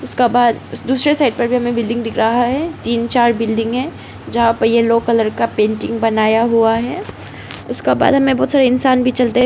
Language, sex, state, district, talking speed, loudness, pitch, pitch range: Hindi, female, Arunachal Pradesh, Papum Pare, 215 wpm, -15 LUFS, 235 Hz, 230-255 Hz